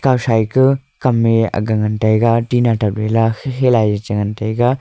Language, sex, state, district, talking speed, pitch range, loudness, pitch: Wancho, male, Arunachal Pradesh, Longding, 200 wpm, 110-125 Hz, -15 LUFS, 115 Hz